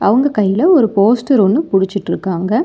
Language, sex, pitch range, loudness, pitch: Tamil, female, 195-265 Hz, -13 LUFS, 210 Hz